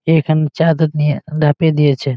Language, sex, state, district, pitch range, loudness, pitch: Bengali, male, West Bengal, Malda, 150-160 Hz, -15 LUFS, 155 Hz